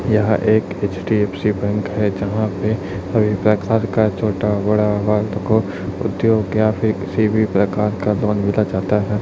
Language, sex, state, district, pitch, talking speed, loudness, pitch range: Hindi, male, Chhattisgarh, Raipur, 105 Hz, 150 wpm, -18 LUFS, 100-110 Hz